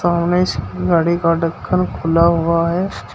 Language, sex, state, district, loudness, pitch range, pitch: Hindi, male, Uttar Pradesh, Shamli, -17 LUFS, 165-175 Hz, 170 Hz